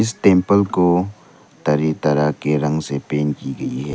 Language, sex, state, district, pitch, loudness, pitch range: Hindi, male, Arunachal Pradesh, Lower Dibang Valley, 75 Hz, -18 LUFS, 75-95 Hz